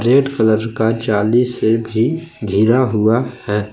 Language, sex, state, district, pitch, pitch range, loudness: Hindi, male, Jharkhand, Palamu, 115 Hz, 110-125 Hz, -16 LUFS